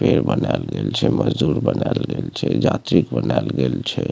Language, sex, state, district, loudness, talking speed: Maithili, male, Bihar, Supaul, -20 LUFS, 175 wpm